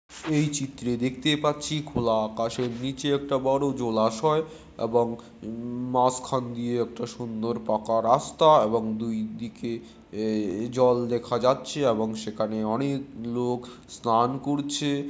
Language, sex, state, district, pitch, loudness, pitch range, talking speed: Bengali, male, West Bengal, Dakshin Dinajpur, 120 Hz, -26 LUFS, 115-135 Hz, 120 wpm